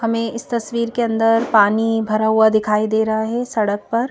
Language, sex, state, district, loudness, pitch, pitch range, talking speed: Hindi, female, Madhya Pradesh, Bhopal, -18 LUFS, 225 Hz, 220-235 Hz, 205 wpm